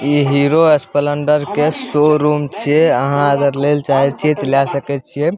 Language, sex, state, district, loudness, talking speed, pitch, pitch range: Maithili, male, Bihar, Samastipur, -14 LUFS, 165 wpm, 145 Hz, 140-150 Hz